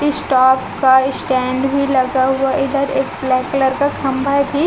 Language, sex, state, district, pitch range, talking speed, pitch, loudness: Hindi, female, Chhattisgarh, Raipur, 260-280 Hz, 180 wpm, 270 Hz, -16 LUFS